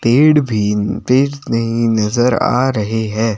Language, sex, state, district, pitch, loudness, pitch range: Hindi, male, Himachal Pradesh, Shimla, 115 Hz, -15 LUFS, 110-130 Hz